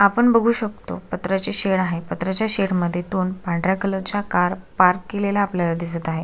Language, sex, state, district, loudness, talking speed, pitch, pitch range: Marathi, female, Maharashtra, Solapur, -21 LUFS, 175 wpm, 190 Hz, 175-200 Hz